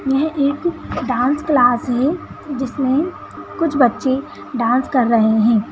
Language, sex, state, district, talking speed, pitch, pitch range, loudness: Kumaoni, male, Uttarakhand, Tehri Garhwal, 125 wpm, 270 Hz, 245-305 Hz, -17 LUFS